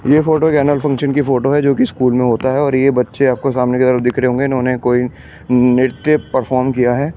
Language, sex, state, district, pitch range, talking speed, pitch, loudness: Hindi, male, Delhi, New Delhi, 125-140 Hz, 250 wpm, 130 Hz, -14 LUFS